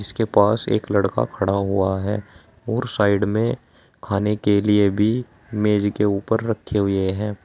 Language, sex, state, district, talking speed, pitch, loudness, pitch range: Hindi, male, Uttar Pradesh, Saharanpur, 160 wpm, 105 Hz, -21 LUFS, 100-110 Hz